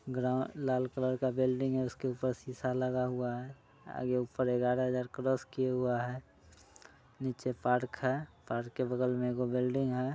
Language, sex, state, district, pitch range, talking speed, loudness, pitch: Hindi, male, Bihar, Muzaffarpur, 125-130 Hz, 185 wpm, -34 LUFS, 130 Hz